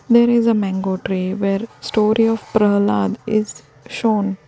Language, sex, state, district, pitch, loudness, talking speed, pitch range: English, female, Gujarat, Valsad, 205 Hz, -18 LUFS, 145 wpm, 190-225 Hz